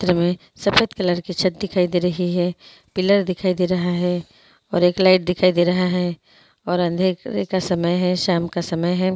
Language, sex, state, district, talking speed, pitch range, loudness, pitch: Hindi, female, Chhattisgarh, Bilaspur, 205 wpm, 175-185 Hz, -20 LUFS, 180 Hz